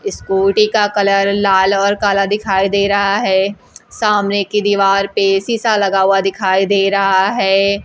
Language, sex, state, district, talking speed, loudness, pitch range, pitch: Hindi, female, Bihar, Kaimur, 160 wpm, -14 LUFS, 195-205 Hz, 200 Hz